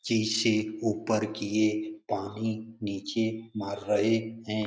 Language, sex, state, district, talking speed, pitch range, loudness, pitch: Hindi, male, Bihar, Lakhisarai, 115 wpm, 105-110 Hz, -29 LUFS, 110 Hz